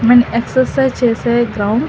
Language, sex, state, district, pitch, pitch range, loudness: Telugu, female, Telangana, Hyderabad, 240 Hz, 230-255 Hz, -14 LUFS